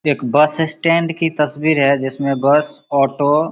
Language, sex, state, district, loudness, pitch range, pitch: Hindi, male, Bihar, Samastipur, -16 LUFS, 140-160 Hz, 150 Hz